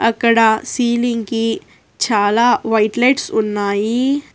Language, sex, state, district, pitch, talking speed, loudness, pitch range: Telugu, female, Telangana, Hyderabad, 230 Hz, 95 wpm, -16 LUFS, 220-240 Hz